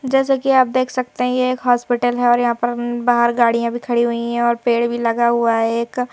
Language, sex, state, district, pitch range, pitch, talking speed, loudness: Hindi, female, Madhya Pradesh, Bhopal, 235-250 Hz, 240 Hz, 255 wpm, -17 LUFS